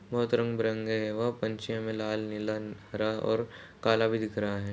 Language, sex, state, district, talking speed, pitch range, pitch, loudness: Hindi, male, Uttar Pradesh, Jalaun, 200 wpm, 105-115 Hz, 110 Hz, -31 LUFS